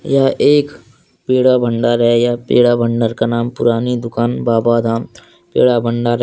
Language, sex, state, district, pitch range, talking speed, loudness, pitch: Hindi, male, Jharkhand, Deoghar, 115-125 Hz, 165 wpm, -14 LUFS, 120 Hz